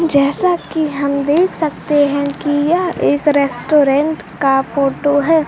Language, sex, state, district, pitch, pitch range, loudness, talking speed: Hindi, female, Bihar, Kaimur, 290 Hz, 280-315 Hz, -15 LUFS, 140 wpm